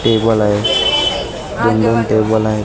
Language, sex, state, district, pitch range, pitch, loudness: Marathi, male, Maharashtra, Mumbai Suburban, 110-115 Hz, 110 Hz, -14 LUFS